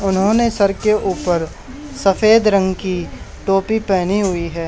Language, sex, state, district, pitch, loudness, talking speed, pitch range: Hindi, male, Haryana, Charkhi Dadri, 195 Hz, -16 LUFS, 140 wpm, 185-215 Hz